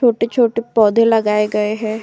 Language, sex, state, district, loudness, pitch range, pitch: Hindi, female, Uttar Pradesh, Jyotiba Phule Nagar, -15 LUFS, 210-230 Hz, 225 Hz